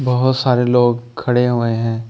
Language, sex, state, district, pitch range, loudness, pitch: Hindi, male, Delhi, New Delhi, 120-125 Hz, -16 LUFS, 125 Hz